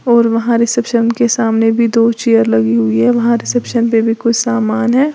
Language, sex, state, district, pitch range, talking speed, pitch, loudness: Hindi, female, Uttar Pradesh, Lalitpur, 225-235 Hz, 210 wpm, 235 Hz, -13 LUFS